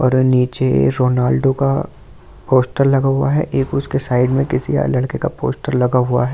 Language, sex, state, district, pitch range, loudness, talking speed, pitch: Hindi, male, Delhi, New Delhi, 125-135 Hz, -16 LUFS, 200 wpm, 130 Hz